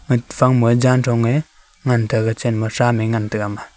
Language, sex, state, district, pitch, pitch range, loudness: Wancho, male, Arunachal Pradesh, Longding, 120 Hz, 110-125 Hz, -18 LUFS